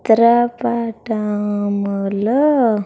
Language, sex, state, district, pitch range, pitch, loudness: Telugu, female, Andhra Pradesh, Sri Satya Sai, 205-235 Hz, 225 Hz, -17 LUFS